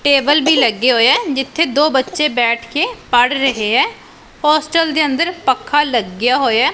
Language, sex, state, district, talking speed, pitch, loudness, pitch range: Punjabi, female, Punjab, Pathankot, 170 wpm, 285 Hz, -14 LUFS, 250-310 Hz